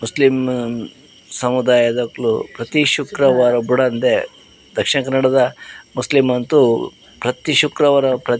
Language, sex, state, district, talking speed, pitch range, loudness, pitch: Tulu, male, Karnataka, Dakshina Kannada, 85 wpm, 120-135 Hz, -16 LUFS, 125 Hz